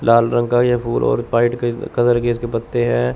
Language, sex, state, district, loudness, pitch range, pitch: Hindi, male, Chandigarh, Chandigarh, -17 LUFS, 115-120 Hz, 120 Hz